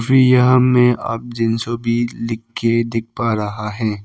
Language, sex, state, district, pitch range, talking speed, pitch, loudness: Hindi, male, Arunachal Pradesh, Papum Pare, 115-120 Hz, 150 wpm, 115 Hz, -17 LUFS